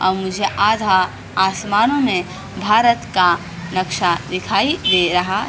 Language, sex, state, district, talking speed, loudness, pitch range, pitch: Hindi, female, Maharashtra, Mumbai Suburban, 140 wpm, -17 LUFS, 180-205 Hz, 185 Hz